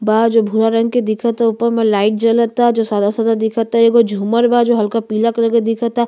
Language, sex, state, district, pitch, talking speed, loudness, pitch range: Bhojpuri, female, Uttar Pradesh, Gorakhpur, 230 Hz, 215 wpm, -14 LUFS, 220-235 Hz